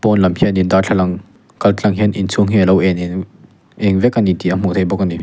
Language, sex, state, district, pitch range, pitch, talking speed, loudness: Mizo, male, Mizoram, Aizawl, 95-100 Hz, 95 Hz, 250 wpm, -15 LUFS